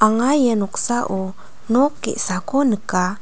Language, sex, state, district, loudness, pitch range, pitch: Garo, female, Meghalaya, North Garo Hills, -19 LUFS, 190-245 Hz, 215 Hz